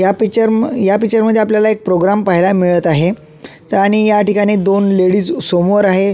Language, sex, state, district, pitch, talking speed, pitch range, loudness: Marathi, male, Maharashtra, Solapur, 200 Hz, 175 wpm, 185-215 Hz, -13 LUFS